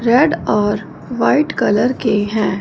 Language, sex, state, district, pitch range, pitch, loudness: Hindi, female, Punjab, Fazilka, 205-250 Hz, 220 Hz, -16 LUFS